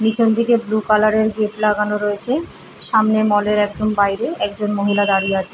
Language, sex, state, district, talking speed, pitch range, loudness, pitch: Bengali, female, West Bengal, Paschim Medinipur, 185 wpm, 205-220 Hz, -17 LUFS, 210 Hz